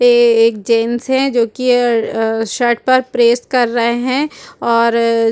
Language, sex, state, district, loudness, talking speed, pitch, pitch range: Hindi, female, Chhattisgarh, Rajnandgaon, -14 LUFS, 160 wpm, 235 Hz, 230-250 Hz